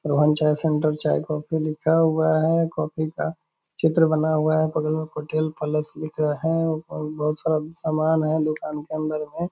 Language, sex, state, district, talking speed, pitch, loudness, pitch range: Hindi, male, Bihar, Purnia, 175 wpm, 155 Hz, -22 LUFS, 150-160 Hz